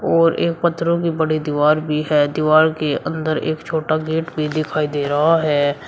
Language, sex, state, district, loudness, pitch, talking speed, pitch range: Hindi, male, Uttar Pradesh, Shamli, -18 LUFS, 155 Hz, 195 wpm, 150-160 Hz